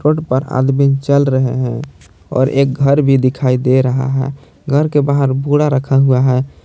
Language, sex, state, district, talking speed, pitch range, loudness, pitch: Hindi, male, Jharkhand, Palamu, 190 wpm, 130-140 Hz, -14 LUFS, 135 Hz